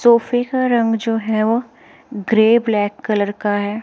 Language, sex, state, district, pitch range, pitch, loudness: Hindi, female, Himachal Pradesh, Shimla, 210-235 Hz, 225 Hz, -17 LUFS